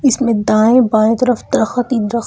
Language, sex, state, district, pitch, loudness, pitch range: Hindi, female, Delhi, New Delhi, 235 Hz, -13 LUFS, 220-250 Hz